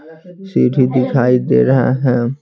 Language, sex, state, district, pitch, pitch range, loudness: Hindi, male, Bihar, Patna, 130 Hz, 125-155 Hz, -14 LUFS